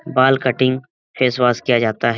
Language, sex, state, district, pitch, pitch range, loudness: Hindi, male, Bihar, Lakhisarai, 125 Hz, 120-130 Hz, -17 LUFS